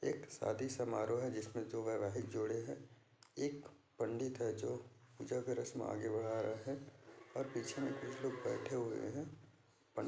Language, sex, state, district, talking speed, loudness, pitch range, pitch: Hindi, male, Chhattisgarh, Bastar, 165 wpm, -42 LUFS, 110-130 Hz, 115 Hz